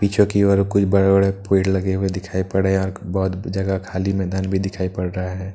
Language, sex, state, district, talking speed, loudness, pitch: Hindi, male, Bihar, Katihar, 240 wpm, -20 LUFS, 95 Hz